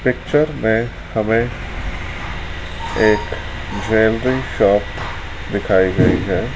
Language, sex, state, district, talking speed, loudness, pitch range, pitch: Hindi, male, Rajasthan, Jaipur, 80 wpm, -18 LUFS, 90-115 Hz, 105 Hz